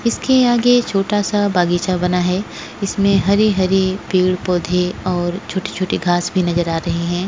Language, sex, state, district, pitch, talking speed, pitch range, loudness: Hindi, female, Goa, North and South Goa, 185 Hz, 180 wpm, 180-200 Hz, -17 LUFS